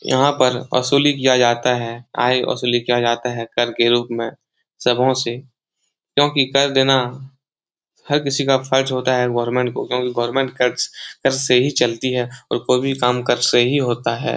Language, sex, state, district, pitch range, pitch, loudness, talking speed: Hindi, male, Uttar Pradesh, Etah, 120-135 Hz, 125 Hz, -18 LUFS, 190 wpm